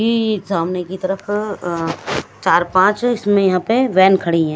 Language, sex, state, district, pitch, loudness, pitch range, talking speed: Hindi, female, Chandigarh, Chandigarh, 190 Hz, -17 LUFS, 175-210 Hz, 170 wpm